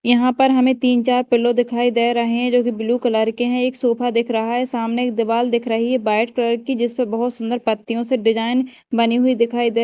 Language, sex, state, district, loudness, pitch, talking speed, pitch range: Hindi, female, Madhya Pradesh, Dhar, -18 LUFS, 240 Hz, 250 wpm, 230-250 Hz